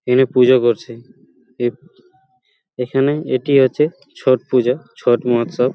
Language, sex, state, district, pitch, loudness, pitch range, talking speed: Bengali, male, West Bengal, Paschim Medinipur, 130 Hz, -17 LUFS, 125-140 Hz, 105 wpm